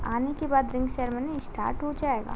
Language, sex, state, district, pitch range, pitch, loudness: Hindi, female, Uttar Pradesh, Gorakhpur, 255-290 Hz, 270 Hz, -29 LUFS